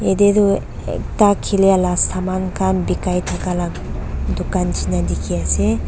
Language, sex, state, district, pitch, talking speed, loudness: Nagamese, female, Nagaland, Dimapur, 180 Hz, 145 wpm, -18 LUFS